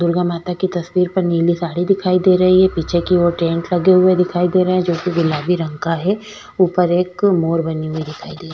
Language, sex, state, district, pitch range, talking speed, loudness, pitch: Hindi, female, Goa, North and South Goa, 170-185 Hz, 240 wpm, -16 LUFS, 175 Hz